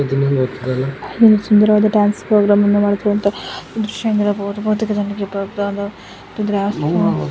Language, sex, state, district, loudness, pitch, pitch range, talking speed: Kannada, female, Karnataka, Shimoga, -16 LUFS, 205 Hz, 200-210 Hz, 80 wpm